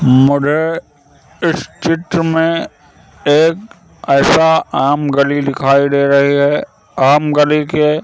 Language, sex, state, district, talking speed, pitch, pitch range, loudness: Hindi, male, Madhya Pradesh, Katni, 120 wpm, 145 Hz, 140-160 Hz, -13 LUFS